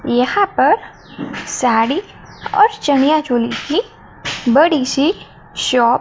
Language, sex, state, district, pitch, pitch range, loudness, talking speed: Hindi, female, Gujarat, Gandhinagar, 285 Hz, 245-340 Hz, -16 LUFS, 100 wpm